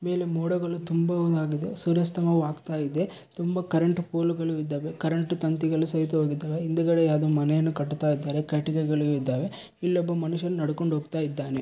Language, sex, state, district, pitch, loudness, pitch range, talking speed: Kannada, male, Karnataka, Bellary, 160 Hz, -27 LUFS, 150-170 Hz, 140 wpm